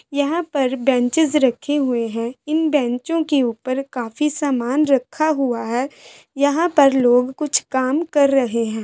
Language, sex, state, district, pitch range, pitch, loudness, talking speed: Hindi, female, Bihar, Samastipur, 245-300 Hz, 275 Hz, -19 LUFS, 155 wpm